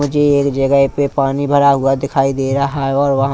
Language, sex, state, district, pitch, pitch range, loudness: Hindi, male, Punjab, Kapurthala, 140 Hz, 135-140 Hz, -14 LUFS